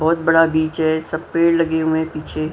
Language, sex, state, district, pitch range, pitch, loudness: Hindi, female, Punjab, Pathankot, 160-165 Hz, 160 Hz, -18 LUFS